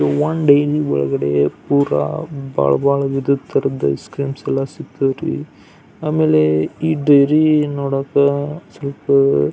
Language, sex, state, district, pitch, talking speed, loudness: Kannada, male, Karnataka, Belgaum, 140 Hz, 100 wpm, -17 LUFS